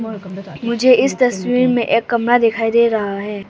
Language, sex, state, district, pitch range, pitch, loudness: Hindi, female, Arunachal Pradesh, Papum Pare, 205-240 Hz, 230 Hz, -16 LUFS